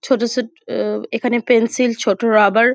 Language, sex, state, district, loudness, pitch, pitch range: Bengali, female, West Bengal, Jhargram, -17 LUFS, 235 Hz, 210-245 Hz